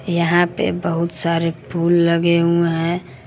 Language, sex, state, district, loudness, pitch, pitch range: Hindi, male, Jharkhand, Palamu, -18 LUFS, 170 Hz, 165-170 Hz